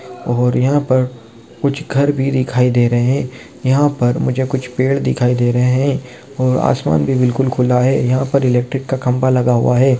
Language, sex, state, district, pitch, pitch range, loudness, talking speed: Hindi, male, Bihar, Kishanganj, 125 Hz, 125-135 Hz, -15 LUFS, 200 wpm